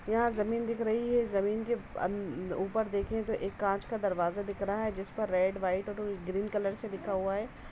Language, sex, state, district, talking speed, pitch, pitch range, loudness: Hindi, female, Uttar Pradesh, Jalaun, 225 wpm, 205 Hz, 195-220 Hz, -33 LUFS